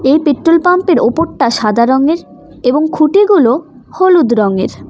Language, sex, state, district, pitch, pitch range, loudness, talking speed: Bengali, female, West Bengal, Cooch Behar, 295 Hz, 240-335 Hz, -11 LUFS, 120 wpm